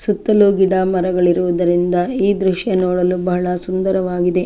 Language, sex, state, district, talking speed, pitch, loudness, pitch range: Kannada, female, Karnataka, Chamarajanagar, 95 wpm, 180 Hz, -16 LUFS, 180-190 Hz